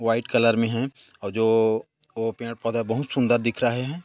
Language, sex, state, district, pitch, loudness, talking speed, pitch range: Hindi, male, Chhattisgarh, Korba, 115 Hz, -24 LUFS, 220 wpm, 115-120 Hz